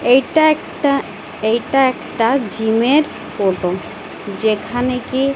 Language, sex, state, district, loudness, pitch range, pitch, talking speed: Bengali, female, Odisha, Malkangiri, -17 LUFS, 215-275 Hz, 245 Hz, 100 wpm